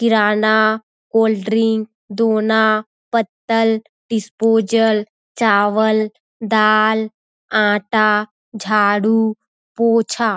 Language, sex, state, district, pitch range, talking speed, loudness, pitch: Surgujia, female, Chhattisgarh, Sarguja, 215-225 Hz, 60 wpm, -16 LUFS, 220 Hz